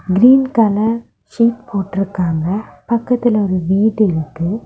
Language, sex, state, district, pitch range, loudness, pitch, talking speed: Tamil, female, Tamil Nadu, Kanyakumari, 190-230 Hz, -16 LUFS, 210 Hz, 115 wpm